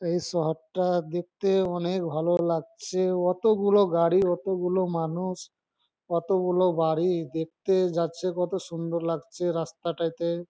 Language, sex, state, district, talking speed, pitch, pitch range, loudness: Bengali, male, West Bengal, Malda, 125 wpm, 175 Hz, 165-185 Hz, -26 LUFS